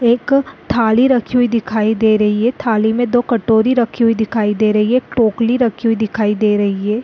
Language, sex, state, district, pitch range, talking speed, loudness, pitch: Hindi, female, Chhattisgarh, Korba, 215-245 Hz, 220 wpm, -15 LUFS, 225 Hz